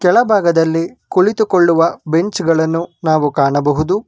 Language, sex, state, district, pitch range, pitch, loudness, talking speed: Kannada, male, Karnataka, Bangalore, 160-185 Hz, 165 Hz, -14 LUFS, 90 wpm